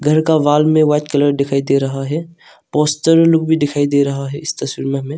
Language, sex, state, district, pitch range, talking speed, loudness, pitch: Hindi, male, Arunachal Pradesh, Longding, 140-155 Hz, 230 wpm, -15 LUFS, 150 Hz